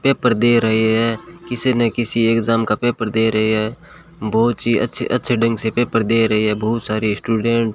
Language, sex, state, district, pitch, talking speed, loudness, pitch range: Hindi, male, Rajasthan, Bikaner, 115 Hz, 210 wpm, -17 LUFS, 110-120 Hz